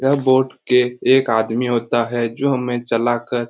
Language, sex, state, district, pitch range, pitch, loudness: Hindi, male, Bihar, Lakhisarai, 120-130 Hz, 120 Hz, -18 LUFS